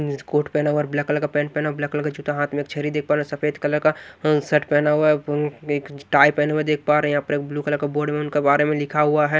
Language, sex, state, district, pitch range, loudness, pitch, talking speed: Hindi, male, Maharashtra, Washim, 145-150 Hz, -21 LUFS, 150 Hz, 340 wpm